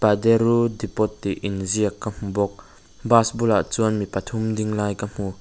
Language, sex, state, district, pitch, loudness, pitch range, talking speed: Mizo, male, Mizoram, Aizawl, 105 Hz, -22 LUFS, 100-110 Hz, 180 wpm